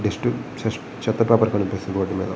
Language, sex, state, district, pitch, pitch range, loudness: Telugu, male, Andhra Pradesh, Visakhapatnam, 105 Hz, 95-115 Hz, -23 LUFS